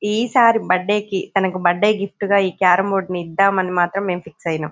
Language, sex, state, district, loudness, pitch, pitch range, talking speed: Telugu, female, Telangana, Nalgonda, -18 LUFS, 190 Hz, 180-200 Hz, 215 wpm